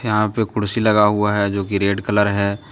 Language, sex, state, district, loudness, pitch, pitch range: Hindi, male, Jharkhand, Deoghar, -18 LUFS, 105 Hz, 100-105 Hz